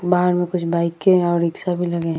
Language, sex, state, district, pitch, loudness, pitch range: Hindi, female, Bihar, Vaishali, 175 Hz, -19 LUFS, 170-180 Hz